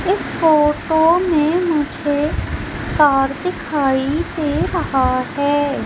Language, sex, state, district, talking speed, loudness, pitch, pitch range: Hindi, female, Madhya Pradesh, Umaria, 90 wpm, -17 LUFS, 295 Hz, 285-320 Hz